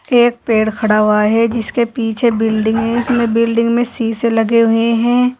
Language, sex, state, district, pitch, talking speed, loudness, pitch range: Hindi, female, Uttar Pradesh, Saharanpur, 230 Hz, 180 wpm, -14 LUFS, 225-235 Hz